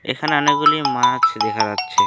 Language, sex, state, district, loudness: Bengali, male, West Bengal, Alipurduar, -17 LUFS